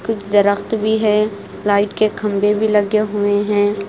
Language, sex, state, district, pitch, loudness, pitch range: Hindi, female, Himachal Pradesh, Shimla, 210 Hz, -17 LUFS, 205-215 Hz